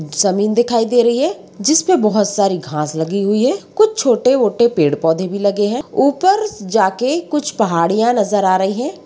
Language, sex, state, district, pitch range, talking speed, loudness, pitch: Hindi, female, Bihar, Darbhanga, 195-260 Hz, 170 wpm, -15 LUFS, 215 Hz